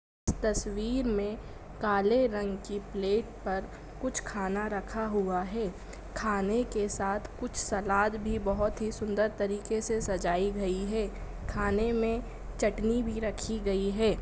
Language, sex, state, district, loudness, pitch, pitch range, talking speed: Hindi, female, Bihar, Saran, -31 LUFS, 210 Hz, 195-220 Hz, 140 wpm